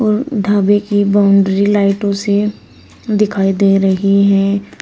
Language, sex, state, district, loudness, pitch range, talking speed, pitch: Hindi, female, Uttar Pradesh, Shamli, -13 LUFS, 195-205 Hz, 110 wpm, 200 Hz